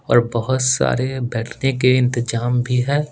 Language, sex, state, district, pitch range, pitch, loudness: Hindi, male, Bihar, Patna, 120-130 Hz, 125 Hz, -18 LUFS